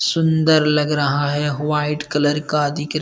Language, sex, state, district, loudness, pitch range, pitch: Hindi, male, Bihar, Supaul, -18 LUFS, 145-150 Hz, 150 Hz